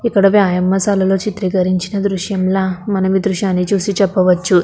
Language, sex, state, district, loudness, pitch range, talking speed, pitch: Telugu, female, Andhra Pradesh, Krishna, -15 LUFS, 185-200 Hz, 115 wpm, 190 Hz